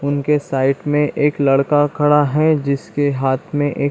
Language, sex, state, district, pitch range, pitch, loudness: Hindi, male, Chhattisgarh, Bilaspur, 140-150 Hz, 145 Hz, -17 LUFS